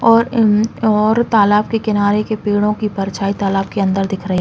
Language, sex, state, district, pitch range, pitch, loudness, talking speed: Hindi, female, Chhattisgarh, Raigarh, 195-220 Hz, 210 Hz, -15 LUFS, 215 wpm